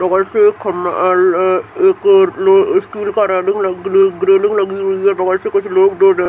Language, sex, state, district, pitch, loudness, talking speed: Hindi, female, Bihar, Madhepura, 210 Hz, -13 LUFS, 210 wpm